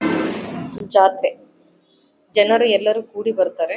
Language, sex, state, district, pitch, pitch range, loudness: Kannada, female, Karnataka, Dharwad, 215 Hz, 200-235 Hz, -18 LUFS